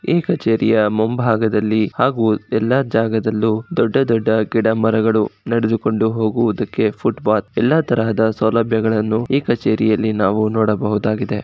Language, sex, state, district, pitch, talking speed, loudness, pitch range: Kannada, male, Karnataka, Shimoga, 110 Hz, 105 wpm, -17 LUFS, 110-115 Hz